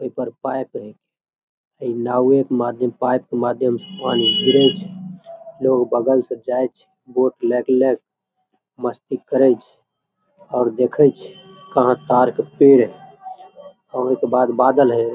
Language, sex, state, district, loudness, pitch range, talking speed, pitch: Maithili, male, Bihar, Begusarai, -18 LUFS, 125-185 Hz, 145 wpm, 130 Hz